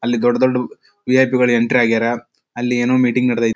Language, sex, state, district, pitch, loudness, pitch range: Kannada, male, Karnataka, Dharwad, 120 Hz, -16 LUFS, 120-125 Hz